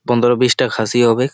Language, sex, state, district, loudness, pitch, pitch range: Bengali, male, West Bengal, Malda, -15 LUFS, 120 Hz, 120-125 Hz